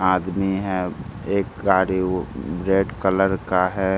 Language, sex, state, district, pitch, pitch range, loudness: Hindi, male, Bihar, Jamui, 95 Hz, 90-95 Hz, -22 LUFS